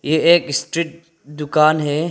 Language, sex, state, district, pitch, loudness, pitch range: Hindi, male, Arunachal Pradesh, Longding, 155 Hz, -17 LUFS, 150-170 Hz